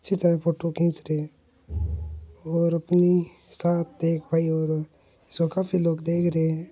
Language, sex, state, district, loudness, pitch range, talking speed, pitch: Hindi, male, Rajasthan, Churu, -25 LUFS, 155-170 Hz, 160 wpm, 165 Hz